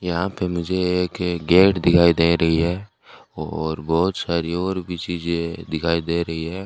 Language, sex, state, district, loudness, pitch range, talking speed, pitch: Hindi, male, Rajasthan, Bikaner, -21 LUFS, 85-90 Hz, 170 wpm, 85 Hz